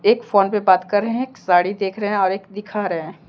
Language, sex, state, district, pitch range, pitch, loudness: Hindi, male, Jharkhand, Deoghar, 185-210 Hz, 200 Hz, -19 LUFS